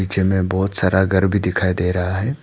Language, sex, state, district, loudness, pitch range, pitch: Hindi, male, Arunachal Pradesh, Papum Pare, -18 LUFS, 90-95 Hz, 95 Hz